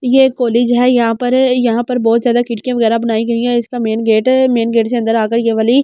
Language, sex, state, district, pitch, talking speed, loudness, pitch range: Hindi, female, Delhi, New Delhi, 235 Hz, 295 wpm, -13 LUFS, 230-250 Hz